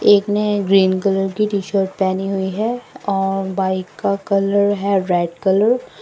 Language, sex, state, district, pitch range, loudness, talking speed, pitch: Hindi, female, Assam, Sonitpur, 190-205 Hz, -18 LUFS, 180 wpm, 195 Hz